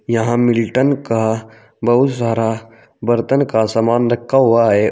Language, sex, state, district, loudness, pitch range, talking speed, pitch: Hindi, male, Uttar Pradesh, Saharanpur, -16 LUFS, 115-120 Hz, 145 wpm, 115 Hz